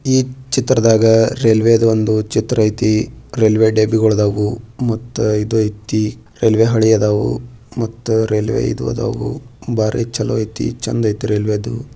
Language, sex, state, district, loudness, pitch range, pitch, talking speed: Kannada, male, Karnataka, Bijapur, -16 LUFS, 110-115 Hz, 110 Hz, 115 wpm